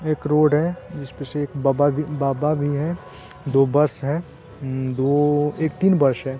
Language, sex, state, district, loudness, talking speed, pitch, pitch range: Hindi, male, Bihar, Saran, -21 LUFS, 195 wpm, 145 Hz, 135-150 Hz